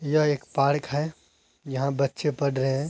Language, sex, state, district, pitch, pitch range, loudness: Hindi, female, Bihar, Araria, 140 Hz, 140-150 Hz, -26 LUFS